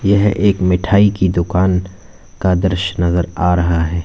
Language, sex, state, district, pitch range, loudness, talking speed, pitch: Hindi, male, Uttar Pradesh, Lalitpur, 90-100 Hz, -15 LUFS, 165 wpm, 90 Hz